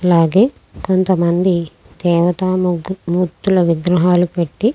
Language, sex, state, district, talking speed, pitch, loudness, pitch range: Telugu, female, Andhra Pradesh, Krishna, 90 wpm, 180 Hz, -16 LUFS, 170-185 Hz